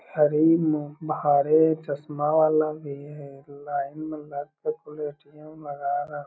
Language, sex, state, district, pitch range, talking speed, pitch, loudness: Magahi, male, Bihar, Lakhisarai, 145-155 Hz, 145 wpm, 150 Hz, -25 LUFS